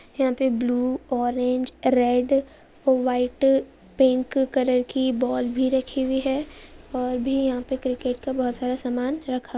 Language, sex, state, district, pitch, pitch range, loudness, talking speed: Hindi, female, Andhra Pradesh, Visakhapatnam, 255 Hz, 250-265 Hz, -23 LUFS, 140 wpm